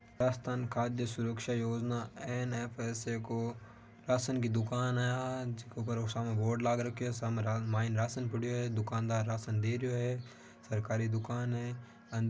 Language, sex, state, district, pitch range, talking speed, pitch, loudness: Marwari, male, Rajasthan, Nagaur, 115-125 Hz, 145 wpm, 115 Hz, -35 LUFS